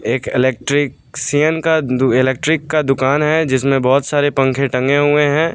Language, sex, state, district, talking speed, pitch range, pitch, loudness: Hindi, male, Bihar, West Champaran, 175 wpm, 130-150 Hz, 140 Hz, -15 LUFS